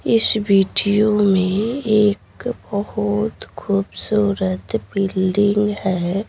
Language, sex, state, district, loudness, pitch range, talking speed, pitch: Hindi, female, Bihar, Patna, -18 LUFS, 190-210 Hz, 75 wpm, 205 Hz